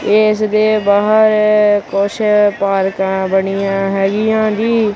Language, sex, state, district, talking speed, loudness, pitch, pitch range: Punjabi, male, Punjab, Kapurthala, 95 wpm, -13 LUFS, 205 Hz, 195-215 Hz